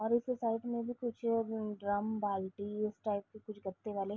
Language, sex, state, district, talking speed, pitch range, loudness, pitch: Hindi, female, Uttar Pradesh, Gorakhpur, 215 wpm, 205-230 Hz, -37 LUFS, 215 Hz